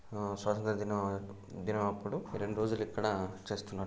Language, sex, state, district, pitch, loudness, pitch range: Telugu, male, Telangana, Nalgonda, 105 Hz, -36 LUFS, 100-105 Hz